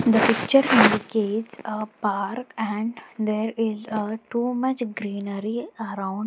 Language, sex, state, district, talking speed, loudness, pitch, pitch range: English, female, Haryana, Jhajjar, 125 wpm, -24 LUFS, 220 Hz, 215-235 Hz